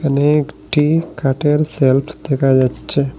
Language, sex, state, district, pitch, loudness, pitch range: Bengali, male, Assam, Hailakandi, 140 Hz, -16 LUFS, 135-150 Hz